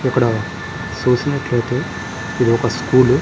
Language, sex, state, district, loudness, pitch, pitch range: Telugu, male, Andhra Pradesh, Srikakulam, -18 LUFS, 125 Hz, 115-130 Hz